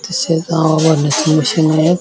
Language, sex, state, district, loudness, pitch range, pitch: Marathi, male, Maharashtra, Dhule, -13 LUFS, 155-165 Hz, 160 Hz